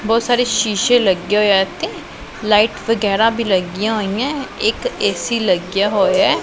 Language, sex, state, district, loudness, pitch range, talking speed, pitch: Punjabi, female, Punjab, Pathankot, -16 LUFS, 195-230 Hz, 150 wpm, 215 Hz